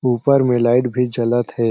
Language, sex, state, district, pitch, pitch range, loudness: Chhattisgarhi, male, Chhattisgarh, Jashpur, 125 Hz, 120-125 Hz, -17 LUFS